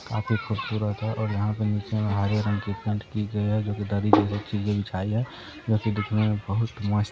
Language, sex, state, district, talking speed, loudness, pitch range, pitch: Hindi, male, Bihar, Supaul, 230 wpm, -26 LUFS, 105-110 Hz, 105 Hz